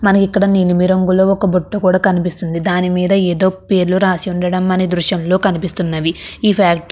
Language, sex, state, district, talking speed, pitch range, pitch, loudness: Telugu, female, Andhra Pradesh, Krishna, 165 wpm, 180-195 Hz, 185 Hz, -14 LUFS